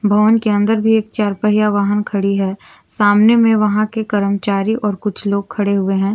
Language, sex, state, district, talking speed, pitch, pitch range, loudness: Hindi, female, Jharkhand, Garhwa, 205 wpm, 205 Hz, 200-215 Hz, -15 LUFS